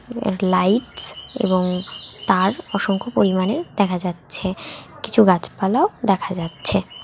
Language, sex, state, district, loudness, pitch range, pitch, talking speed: Bengali, female, West Bengal, Dakshin Dinajpur, -20 LUFS, 185-205 Hz, 190 Hz, 95 wpm